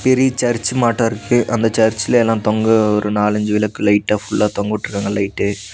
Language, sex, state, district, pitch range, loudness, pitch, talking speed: Tamil, male, Tamil Nadu, Nilgiris, 105-115 Hz, -16 LUFS, 105 Hz, 190 wpm